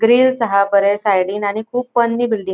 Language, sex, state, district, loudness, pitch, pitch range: Konkani, female, Goa, North and South Goa, -16 LUFS, 220 Hz, 200-240 Hz